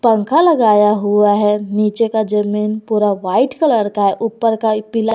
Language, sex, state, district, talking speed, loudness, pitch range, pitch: Hindi, female, Jharkhand, Garhwa, 175 wpm, -15 LUFS, 210-225 Hz, 215 Hz